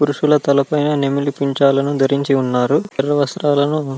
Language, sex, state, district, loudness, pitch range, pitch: Telugu, male, Andhra Pradesh, Anantapur, -16 LUFS, 140-145 Hz, 140 Hz